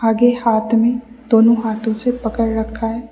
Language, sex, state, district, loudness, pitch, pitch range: Hindi, female, Mizoram, Aizawl, -16 LUFS, 230 Hz, 225-240 Hz